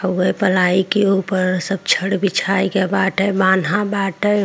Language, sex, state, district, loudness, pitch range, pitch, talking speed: Hindi, female, Uttar Pradesh, Jyotiba Phule Nagar, -17 LUFS, 185-195 Hz, 195 Hz, 135 wpm